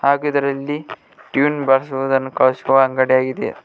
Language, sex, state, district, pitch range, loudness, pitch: Kannada, male, Karnataka, Koppal, 130-140 Hz, -17 LUFS, 135 Hz